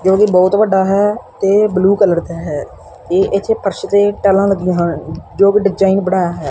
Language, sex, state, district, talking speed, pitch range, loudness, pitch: Punjabi, male, Punjab, Kapurthala, 185 wpm, 185-200 Hz, -14 LUFS, 195 Hz